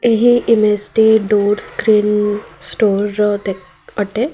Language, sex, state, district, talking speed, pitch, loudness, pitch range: Odia, female, Odisha, Khordha, 125 wpm, 210 Hz, -15 LUFS, 205-220 Hz